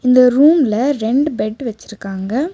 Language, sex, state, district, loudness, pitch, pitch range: Tamil, female, Tamil Nadu, Nilgiris, -14 LUFS, 250 Hz, 215-280 Hz